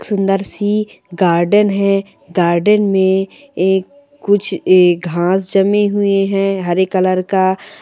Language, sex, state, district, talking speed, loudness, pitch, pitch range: Hindi, female, Chhattisgarh, Rajnandgaon, 115 wpm, -14 LUFS, 195 Hz, 185-200 Hz